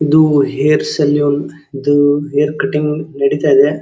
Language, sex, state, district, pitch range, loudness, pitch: Kannada, male, Karnataka, Dharwad, 145-150 Hz, -14 LUFS, 145 Hz